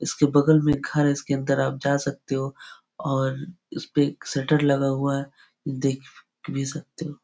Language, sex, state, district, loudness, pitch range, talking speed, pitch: Hindi, male, Bihar, Araria, -24 LUFS, 135-150 Hz, 180 wpm, 140 Hz